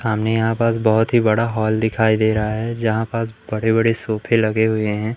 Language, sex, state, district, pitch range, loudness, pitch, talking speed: Hindi, male, Madhya Pradesh, Umaria, 110-115 Hz, -18 LUFS, 110 Hz, 220 wpm